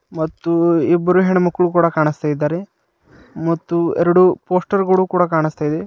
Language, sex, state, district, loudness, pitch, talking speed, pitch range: Kannada, male, Karnataka, Bidar, -16 LUFS, 170 Hz, 110 wpm, 160-180 Hz